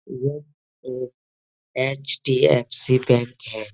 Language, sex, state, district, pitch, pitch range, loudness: Hindi, male, Uttar Pradesh, Etah, 125 Hz, 120-130 Hz, -21 LUFS